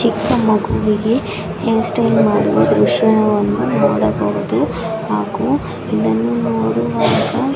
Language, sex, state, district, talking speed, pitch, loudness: Kannada, female, Karnataka, Mysore, 85 wpm, 210 Hz, -16 LUFS